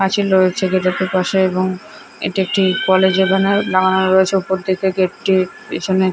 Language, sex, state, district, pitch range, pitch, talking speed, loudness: Bengali, female, West Bengal, Malda, 185-190 Hz, 190 Hz, 135 wpm, -16 LUFS